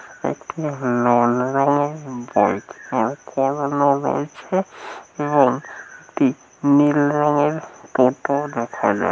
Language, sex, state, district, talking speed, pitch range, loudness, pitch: Bengali, male, West Bengal, North 24 Parganas, 70 wpm, 130-150 Hz, -20 LUFS, 145 Hz